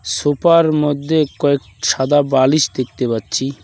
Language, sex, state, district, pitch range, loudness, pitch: Bengali, male, West Bengal, Cooch Behar, 130-150 Hz, -16 LUFS, 140 Hz